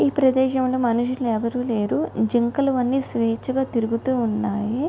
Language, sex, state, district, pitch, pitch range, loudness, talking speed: Telugu, female, Andhra Pradesh, Guntur, 245 Hz, 230-260 Hz, -22 LUFS, 110 wpm